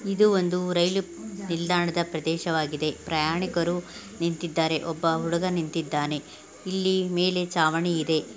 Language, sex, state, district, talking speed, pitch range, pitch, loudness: Kannada, female, Karnataka, Belgaum, 110 wpm, 160-180 Hz, 170 Hz, -26 LUFS